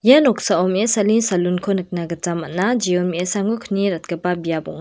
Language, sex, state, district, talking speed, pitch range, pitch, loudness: Garo, female, Meghalaya, West Garo Hills, 160 wpm, 175-210 Hz, 185 Hz, -19 LUFS